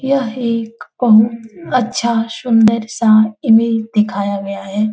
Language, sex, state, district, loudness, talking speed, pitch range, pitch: Hindi, female, Bihar, Jahanabad, -15 LUFS, 120 wpm, 215-235 Hz, 225 Hz